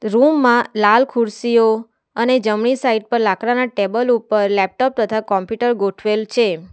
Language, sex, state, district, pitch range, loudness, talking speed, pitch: Gujarati, female, Gujarat, Valsad, 210-240 Hz, -17 LUFS, 135 wpm, 225 Hz